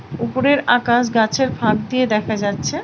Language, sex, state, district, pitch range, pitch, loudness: Bengali, female, West Bengal, Paschim Medinipur, 215-255 Hz, 235 Hz, -18 LUFS